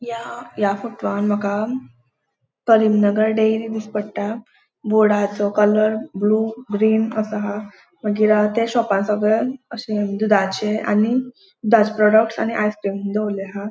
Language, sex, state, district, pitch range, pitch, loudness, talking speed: Konkani, female, Goa, North and South Goa, 205-220 Hz, 215 Hz, -19 LUFS, 125 wpm